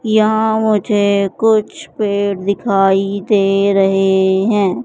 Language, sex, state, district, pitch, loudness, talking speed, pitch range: Hindi, female, Madhya Pradesh, Katni, 200 Hz, -14 LUFS, 100 wpm, 195-215 Hz